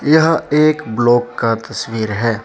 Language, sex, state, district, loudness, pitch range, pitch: Hindi, male, Jharkhand, Deoghar, -15 LUFS, 115-150 Hz, 120 Hz